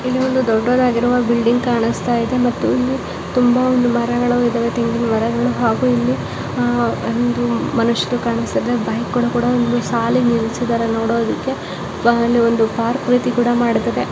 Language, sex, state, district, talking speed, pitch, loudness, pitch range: Kannada, female, Karnataka, Gulbarga, 120 wpm, 235 Hz, -17 LUFS, 230-245 Hz